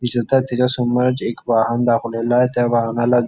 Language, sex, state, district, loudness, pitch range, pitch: Marathi, male, Maharashtra, Nagpur, -17 LUFS, 115-125 Hz, 120 Hz